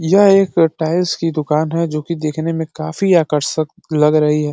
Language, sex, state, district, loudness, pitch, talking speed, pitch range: Hindi, male, Uttar Pradesh, Deoria, -16 LUFS, 160 Hz, 185 wpm, 155-170 Hz